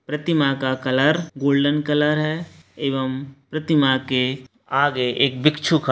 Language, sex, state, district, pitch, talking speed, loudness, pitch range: Hindi, male, Bihar, Begusarai, 140 Hz, 140 wpm, -20 LUFS, 130-150 Hz